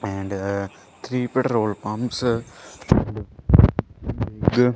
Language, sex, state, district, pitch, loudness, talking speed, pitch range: English, male, Punjab, Kapurthala, 115 Hz, -22 LUFS, 75 wpm, 100-125 Hz